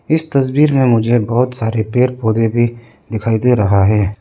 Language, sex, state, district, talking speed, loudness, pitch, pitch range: Hindi, male, Arunachal Pradesh, Lower Dibang Valley, 185 wpm, -14 LUFS, 115 Hz, 110-125 Hz